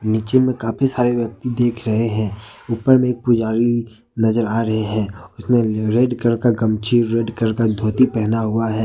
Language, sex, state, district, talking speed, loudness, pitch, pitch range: Hindi, male, Jharkhand, Ranchi, 185 wpm, -18 LUFS, 115 Hz, 110-120 Hz